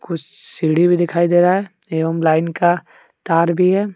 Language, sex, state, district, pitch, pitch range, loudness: Hindi, male, Jharkhand, Deoghar, 175 Hz, 165-180 Hz, -17 LUFS